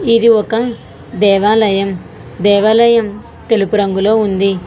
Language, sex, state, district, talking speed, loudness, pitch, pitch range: Telugu, female, Telangana, Hyderabad, 90 wpm, -12 LUFS, 205 Hz, 195-225 Hz